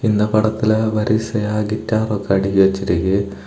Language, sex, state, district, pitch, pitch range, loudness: Tamil, male, Tamil Nadu, Kanyakumari, 105 Hz, 100-110 Hz, -18 LUFS